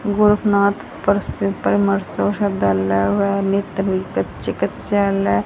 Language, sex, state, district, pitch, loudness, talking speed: Hindi, female, Haryana, Charkhi Dadri, 195 Hz, -19 LUFS, 45 wpm